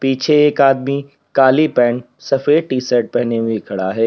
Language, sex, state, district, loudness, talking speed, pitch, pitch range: Hindi, male, Uttar Pradesh, Lalitpur, -15 LUFS, 160 wpm, 130 Hz, 120-140 Hz